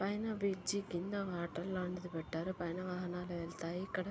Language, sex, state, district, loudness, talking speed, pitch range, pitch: Telugu, female, Andhra Pradesh, Guntur, -40 LUFS, 115 wpm, 175-195 Hz, 180 Hz